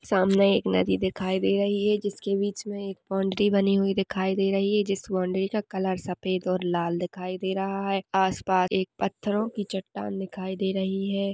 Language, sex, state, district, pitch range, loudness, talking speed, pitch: Hindi, female, Jharkhand, Sahebganj, 185-200 Hz, -26 LUFS, 205 wpm, 195 Hz